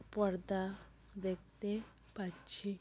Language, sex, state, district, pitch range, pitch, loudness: Bengali, female, West Bengal, North 24 Parganas, 185-205 Hz, 195 Hz, -41 LUFS